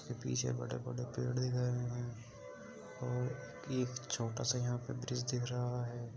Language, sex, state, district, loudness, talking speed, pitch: Hindi, male, Uttar Pradesh, Etah, -39 LUFS, 155 wpm, 120 Hz